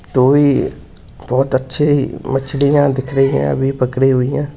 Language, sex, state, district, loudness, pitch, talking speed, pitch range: Hindi, male, West Bengal, Kolkata, -15 LUFS, 135 Hz, 145 wpm, 130-140 Hz